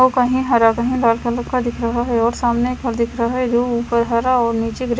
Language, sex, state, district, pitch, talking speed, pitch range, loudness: Hindi, female, Himachal Pradesh, Shimla, 240 Hz, 275 wpm, 235-250 Hz, -18 LUFS